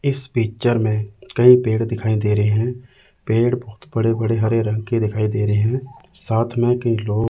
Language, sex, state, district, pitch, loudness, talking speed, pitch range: Hindi, male, Chandigarh, Chandigarh, 115 Hz, -19 LUFS, 195 wpm, 110-120 Hz